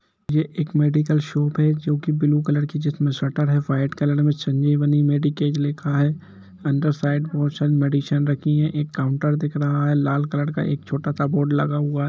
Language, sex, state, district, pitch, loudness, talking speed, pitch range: Hindi, male, Jharkhand, Jamtara, 145 Hz, -21 LUFS, 190 wpm, 145-150 Hz